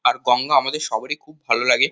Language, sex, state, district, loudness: Bengali, male, West Bengal, Kolkata, -20 LUFS